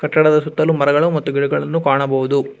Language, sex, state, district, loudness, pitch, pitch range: Kannada, male, Karnataka, Bangalore, -16 LUFS, 145 Hz, 140-155 Hz